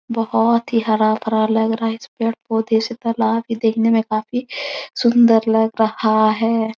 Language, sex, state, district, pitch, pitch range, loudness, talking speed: Hindi, female, Bihar, Supaul, 225 Hz, 220-230 Hz, -18 LUFS, 160 wpm